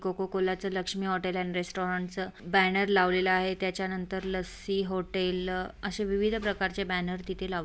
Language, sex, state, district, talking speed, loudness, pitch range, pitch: Marathi, female, Maharashtra, Aurangabad, 175 wpm, -30 LUFS, 185-195 Hz, 185 Hz